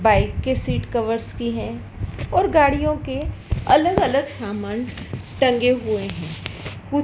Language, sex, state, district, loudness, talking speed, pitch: Hindi, female, Madhya Pradesh, Dhar, -21 LUFS, 135 wpm, 235 Hz